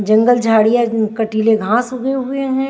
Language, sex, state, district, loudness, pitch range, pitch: Hindi, female, Maharashtra, Washim, -15 LUFS, 220-255 Hz, 235 Hz